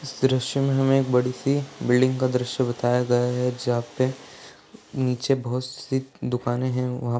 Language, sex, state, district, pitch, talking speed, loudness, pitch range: Hindi, male, Maharashtra, Solapur, 125 Hz, 165 wpm, -24 LUFS, 125-135 Hz